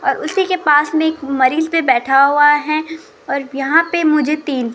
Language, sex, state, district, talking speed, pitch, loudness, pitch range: Hindi, female, Rajasthan, Jaipur, 200 wpm, 305 Hz, -15 LUFS, 275-325 Hz